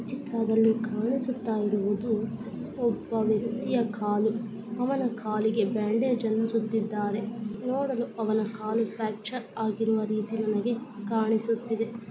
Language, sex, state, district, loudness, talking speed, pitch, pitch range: Kannada, female, Karnataka, Gulbarga, -28 LUFS, 105 wpm, 225 Hz, 215-230 Hz